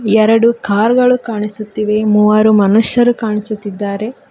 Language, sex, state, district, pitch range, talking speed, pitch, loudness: Kannada, female, Karnataka, Koppal, 210-230 Hz, 95 wpm, 215 Hz, -13 LUFS